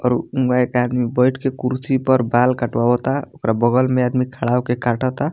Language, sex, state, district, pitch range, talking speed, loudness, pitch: Bhojpuri, male, Bihar, Muzaffarpur, 120-130 Hz, 200 wpm, -18 LUFS, 125 Hz